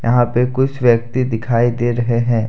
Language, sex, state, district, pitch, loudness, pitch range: Hindi, male, Jharkhand, Deoghar, 120 Hz, -16 LUFS, 115-125 Hz